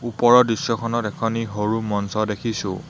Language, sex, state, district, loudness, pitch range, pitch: Assamese, male, Assam, Hailakandi, -21 LUFS, 105-115 Hz, 115 Hz